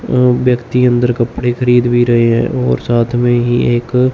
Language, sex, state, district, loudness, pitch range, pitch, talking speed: Hindi, male, Chandigarh, Chandigarh, -13 LUFS, 120-125 Hz, 120 Hz, 190 wpm